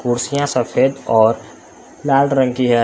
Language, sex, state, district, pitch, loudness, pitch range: Hindi, male, Jharkhand, Palamu, 125 Hz, -16 LUFS, 120-135 Hz